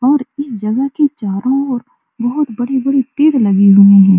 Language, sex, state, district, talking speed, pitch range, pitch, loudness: Hindi, female, Bihar, Supaul, 170 wpm, 215-275 Hz, 255 Hz, -13 LUFS